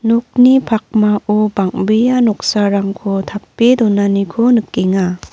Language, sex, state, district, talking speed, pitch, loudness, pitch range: Garo, female, Meghalaya, North Garo Hills, 80 wpm, 210 Hz, -14 LUFS, 200-230 Hz